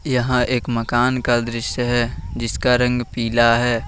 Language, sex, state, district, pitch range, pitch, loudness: Hindi, male, Jharkhand, Ranchi, 115-125 Hz, 120 Hz, -19 LUFS